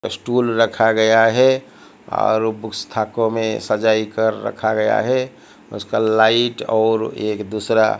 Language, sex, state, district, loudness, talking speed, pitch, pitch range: Hindi, male, Odisha, Malkangiri, -18 LUFS, 140 wpm, 110 Hz, 110-115 Hz